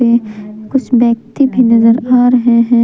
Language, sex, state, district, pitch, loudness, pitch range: Hindi, female, Jharkhand, Palamu, 240 Hz, -11 LUFS, 230-250 Hz